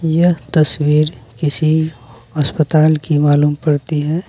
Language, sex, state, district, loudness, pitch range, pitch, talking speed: Hindi, male, Bihar, West Champaran, -15 LUFS, 145-155 Hz, 150 Hz, 110 wpm